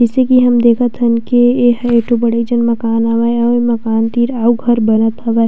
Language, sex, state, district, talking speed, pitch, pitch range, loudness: Chhattisgarhi, female, Chhattisgarh, Sukma, 230 wpm, 235 Hz, 230-240 Hz, -12 LUFS